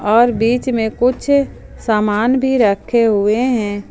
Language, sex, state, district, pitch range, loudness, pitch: Hindi, female, Jharkhand, Ranchi, 210-250 Hz, -15 LUFS, 230 Hz